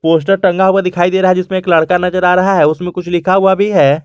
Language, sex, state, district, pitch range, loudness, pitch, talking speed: Hindi, male, Jharkhand, Garhwa, 175-190 Hz, -12 LUFS, 180 Hz, 295 wpm